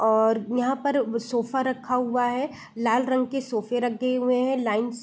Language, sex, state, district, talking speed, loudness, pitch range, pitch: Hindi, female, Bihar, Sitamarhi, 180 wpm, -25 LUFS, 230-260 Hz, 245 Hz